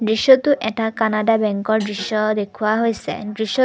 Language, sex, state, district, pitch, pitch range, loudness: Assamese, female, Assam, Kamrup Metropolitan, 220 Hz, 215-225 Hz, -19 LUFS